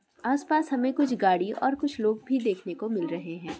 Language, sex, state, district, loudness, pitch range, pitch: Hindi, female, Andhra Pradesh, Chittoor, -27 LUFS, 180-270 Hz, 220 Hz